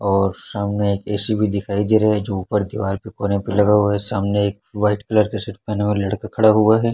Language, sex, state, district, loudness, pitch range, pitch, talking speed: Hindi, male, Chhattisgarh, Raipur, -19 LUFS, 100-105 Hz, 105 Hz, 270 wpm